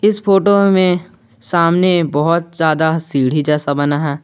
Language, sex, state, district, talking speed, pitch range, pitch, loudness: Hindi, male, Jharkhand, Garhwa, 140 wpm, 150-180 Hz, 165 Hz, -14 LUFS